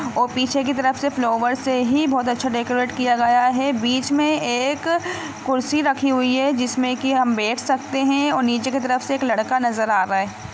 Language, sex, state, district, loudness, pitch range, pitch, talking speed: Hindi, female, Jharkhand, Jamtara, -20 LUFS, 245-275 Hz, 255 Hz, 215 wpm